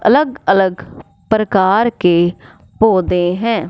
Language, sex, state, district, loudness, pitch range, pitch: Hindi, female, Punjab, Fazilka, -14 LUFS, 180-225 Hz, 195 Hz